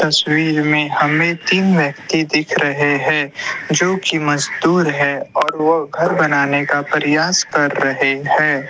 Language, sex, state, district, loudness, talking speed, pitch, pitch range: Hindi, male, Assam, Kamrup Metropolitan, -15 LUFS, 145 wpm, 150 Hz, 145-165 Hz